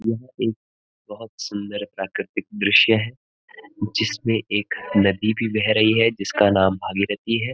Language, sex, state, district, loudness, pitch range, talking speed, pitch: Hindi, male, Uttarakhand, Uttarkashi, -21 LUFS, 100-115 Hz, 145 wpm, 105 Hz